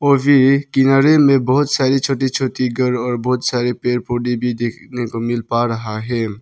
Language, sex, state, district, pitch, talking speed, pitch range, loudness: Hindi, male, Arunachal Pradesh, Lower Dibang Valley, 125 Hz, 205 wpm, 120-135 Hz, -16 LUFS